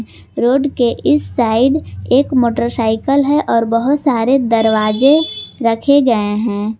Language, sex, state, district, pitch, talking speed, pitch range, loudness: Hindi, female, Jharkhand, Garhwa, 240 Hz, 125 wpm, 225-280 Hz, -14 LUFS